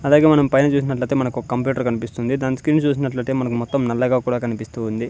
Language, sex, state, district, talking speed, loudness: Telugu, male, Andhra Pradesh, Sri Satya Sai, 200 wpm, -20 LUFS